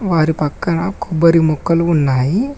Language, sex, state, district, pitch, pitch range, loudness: Telugu, male, Telangana, Mahabubabad, 165 Hz, 155-170 Hz, -15 LUFS